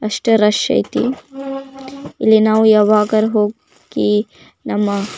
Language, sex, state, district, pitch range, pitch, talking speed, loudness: Kannada, female, Karnataka, Belgaum, 210-250 Hz, 215 Hz, 105 wpm, -15 LUFS